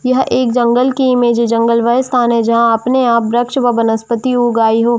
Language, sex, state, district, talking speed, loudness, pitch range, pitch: Hindi, female, Jharkhand, Jamtara, 215 wpm, -13 LUFS, 230-250 Hz, 240 Hz